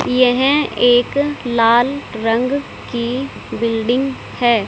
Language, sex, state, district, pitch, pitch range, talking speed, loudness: Hindi, female, Haryana, Charkhi Dadri, 245 Hz, 235-270 Hz, 90 wpm, -17 LUFS